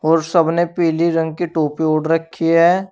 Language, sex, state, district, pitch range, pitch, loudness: Hindi, male, Uttar Pradesh, Shamli, 160-170 Hz, 165 Hz, -17 LUFS